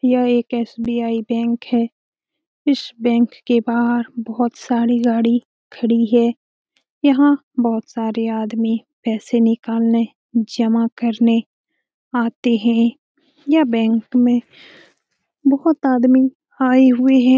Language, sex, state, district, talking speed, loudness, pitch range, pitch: Hindi, female, Bihar, Jamui, 120 wpm, -18 LUFS, 230-255 Hz, 235 Hz